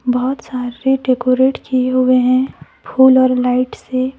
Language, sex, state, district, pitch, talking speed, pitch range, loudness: Hindi, female, Jharkhand, Deoghar, 255 Hz, 145 wpm, 250-260 Hz, -15 LUFS